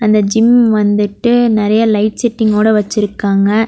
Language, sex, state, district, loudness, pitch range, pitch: Tamil, female, Tamil Nadu, Nilgiris, -12 LUFS, 210-225 Hz, 215 Hz